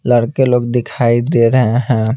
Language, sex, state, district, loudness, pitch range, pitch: Hindi, male, Bihar, Patna, -14 LUFS, 115-125 Hz, 120 Hz